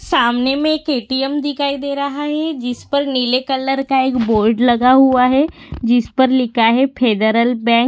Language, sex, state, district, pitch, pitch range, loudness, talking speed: Hindi, female, Maharashtra, Pune, 260 Hz, 245-280 Hz, -15 LUFS, 185 wpm